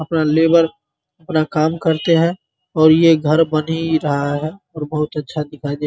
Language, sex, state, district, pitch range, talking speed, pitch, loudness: Hindi, male, Bihar, Muzaffarpur, 150-165 Hz, 195 wpm, 155 Hz, -17 LUFS